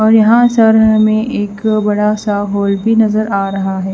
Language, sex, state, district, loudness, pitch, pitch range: Hindi, female, Haryana, Rohtak, -12 LUFS, 215 Hz, 205-220 Hz